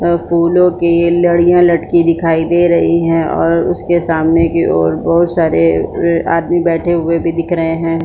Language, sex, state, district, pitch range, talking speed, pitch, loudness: Hindi, female, Chhattisgarh, Bilaspur, 165-170 Hz, 165 wpm, 170 Hz, -12 LUFS